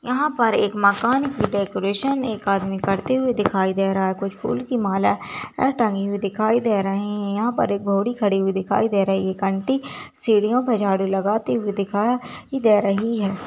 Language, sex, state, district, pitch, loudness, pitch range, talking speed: Hindi, female, Chhattisgarh, Balrampur, 205 Hz, -21 LUFS, 195-235 Hz, 205 wpm